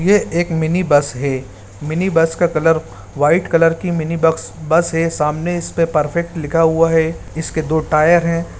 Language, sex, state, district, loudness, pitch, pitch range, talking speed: Hindi, male, Bihar, Saran, -16 LUFS, 165 Hz, 155-170 Hz, 180 wpm